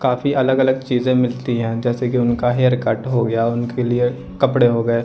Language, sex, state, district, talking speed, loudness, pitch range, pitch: Hindi, male, Punjab, Kapurthala, 200 wpm, -18 LUFS, 120-130 Hz, 125 Hz